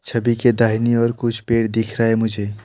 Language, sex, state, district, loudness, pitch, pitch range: Hindi, male, West Bengal, Alipurduar, -18 LUFS, 115 Hz, 110-120 Hz